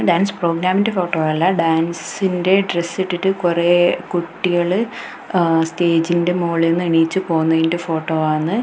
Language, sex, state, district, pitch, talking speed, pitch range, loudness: Malayalam, female, Kerala, Kasaragod, 175 Hz, 110 wpm, 165-185 Hz, -18 LUFS